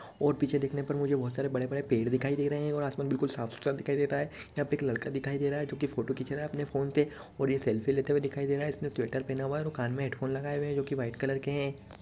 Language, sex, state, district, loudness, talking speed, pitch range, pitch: Hindi, male, Uttarakhand, Uttarkashi, -32 LUFS, 320 wpm, 135-145 Hz, 140 Hz